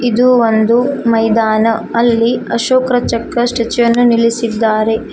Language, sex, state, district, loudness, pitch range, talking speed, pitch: Kannada, female, Karnataka, Koppal, -12 LUFS, 225-240 Hz, 105 wpm, 235 Hz